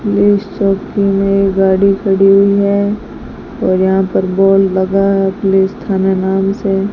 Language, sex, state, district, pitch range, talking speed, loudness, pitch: Hindi, female, Rajasthan, Bikaner, 195-200 Hz, 145 wpm, -12 LUFS, 195 Hz